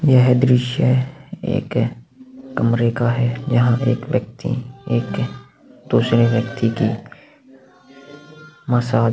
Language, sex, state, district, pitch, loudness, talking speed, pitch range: Hindi, male, Maharashtra, Aurangabad, 125 Hz, -19 LUFS, 100 wpm, 120-140 Hz